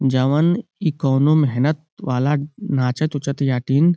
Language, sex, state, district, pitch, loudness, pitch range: Bhojpuri, male, Uttar Pradesh, Gorakhpur, 145 Hz, -19 LUFS, 135-155 Hz